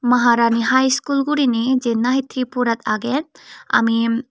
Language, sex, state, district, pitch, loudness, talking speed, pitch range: Chakma, female, Tripura, Dhalai, 245 Hz, -18 LUFS, 125 wpm, 230-260 Hz